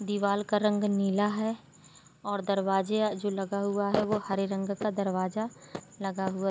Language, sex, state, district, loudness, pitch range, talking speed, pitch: Hindi, female, Jharkhand, Sahebganj, -30 LUFS, 195-210 Hz, 165 wpm, 200 Hz